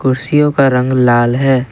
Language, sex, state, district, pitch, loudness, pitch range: Hindi, male, Assam, Kamrup Metropolitan, 130 Hz, -12 LUFS, 125-135 Hz